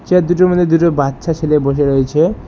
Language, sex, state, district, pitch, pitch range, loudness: Bengali, male, West Bengal, Alipurduar, 165 Hz, 140-175 Hz, -13 LUFS